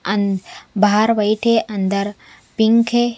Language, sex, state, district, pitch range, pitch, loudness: Hindi, female, Punjab, Kapurthala, 200-230 Hz, 210 Hz, -17 LUFS